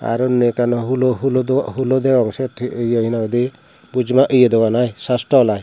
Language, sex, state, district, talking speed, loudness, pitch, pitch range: Chakma, male, Tripura, Dhalai, 180 wpm, -17 LUFS, 125 Hz, 120-130 Hz